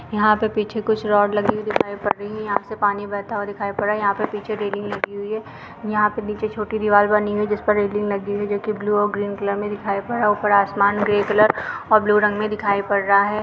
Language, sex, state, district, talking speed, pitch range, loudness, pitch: Hindi, female, Chhattisgarh, Bilaspur, 285 wpm, 205-215 Hz, -20 LUFS, 210 Hz